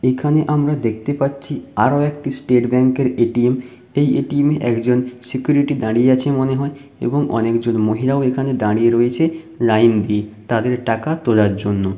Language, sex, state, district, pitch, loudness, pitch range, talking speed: Bengali, male, West Bengal, Paschim Medinipur, 125 Hz, -17 LUFS, 115-140 Hz, 150 wpm